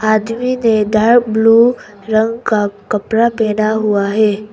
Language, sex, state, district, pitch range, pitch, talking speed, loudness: Hindi, female, Arunachal Pradesh, Papum Pare, 210-230 Hz, 220 Hz, 95 wpm, -14 LUFS